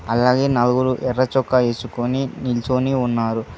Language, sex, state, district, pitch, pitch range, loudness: Telugu, male, Telangana, Mahabubabad, 125 Hz, 120-130 Hz, -19 LUFS